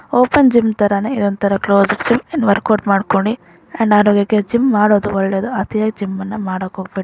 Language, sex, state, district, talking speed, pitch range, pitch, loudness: Kannada, female, Karnataka, Bijapur, 160 wpm, 195-220 Hz, 205 Hz, -15 LUFS